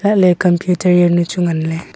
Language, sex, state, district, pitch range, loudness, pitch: Wancho, female, Arunachal Pradesh, Longding, 170-180 Hz, -14 LUFS, 175 Hz